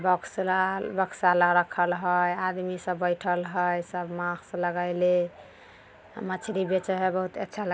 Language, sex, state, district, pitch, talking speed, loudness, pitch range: Maithili, female, Bihar, Samastipur, 180 Hz, 145 wpm, -27 LUFS, 175-185 Hz